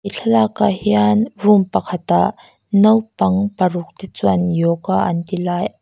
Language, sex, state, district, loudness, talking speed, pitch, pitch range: Mizo, female, Mizoram, Aizawl, -17 LUFS, 145 wpm, 185 Hz, 170-205 Hz